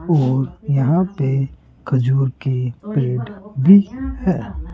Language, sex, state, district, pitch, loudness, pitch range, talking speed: Hindi, male, Rajasthan, Jaipur, 135 Hz, -18 LUFS, 130-185 Hz, 100 wpm